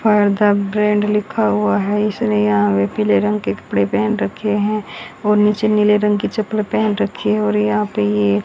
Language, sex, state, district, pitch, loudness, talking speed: Hindi, female, Haryana, Jhajjar, 195 Hz, -17 LUFS, 200 wpm